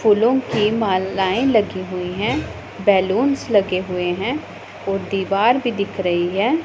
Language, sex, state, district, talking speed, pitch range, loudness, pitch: Hindi, female, Punjab, Pathankot, 145 wpm, 185-225 Hz, -19 LUFS, 195 Hz